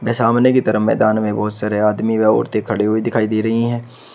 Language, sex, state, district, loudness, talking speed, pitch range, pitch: Hindi, male, Uttar Pradesh, Shamli, -16 LUFS, 230 wpm, 105-115 Hz, 110 Hz